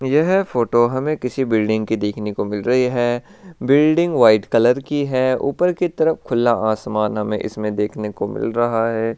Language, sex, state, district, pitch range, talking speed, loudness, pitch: Hindi, male, Rajasthan, Churu, 110-140 Hz, 185 wpm, -18 LUFS, 120 Hz